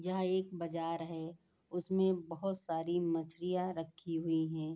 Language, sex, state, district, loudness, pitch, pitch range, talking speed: Hindi, female, Bihar, Saharsa, -37 LUFS, 170 Hz, 165-180 Hz, 140 wpm